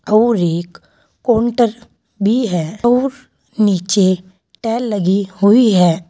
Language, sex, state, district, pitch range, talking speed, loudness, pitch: Hindi, female, Uttar Pradesh, Saharanpur, 185-235 Hz, 110 wpm, -15 LUFS, 210 Hz